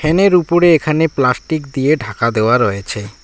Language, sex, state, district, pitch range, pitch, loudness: Bengali, male, West Bengal, Alipurduar, 115-160 Hz, 140 Hz, -14 LUFS